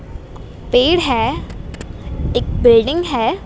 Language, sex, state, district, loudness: Hindi, female, Gujarat, Gandhinagar, -15 LUFS